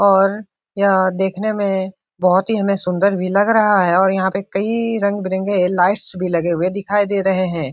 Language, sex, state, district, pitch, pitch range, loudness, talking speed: Hindi, male, Bihar, Supaul, 195 Hz, 185-200 Hz, -17 LUFS, 195 wpm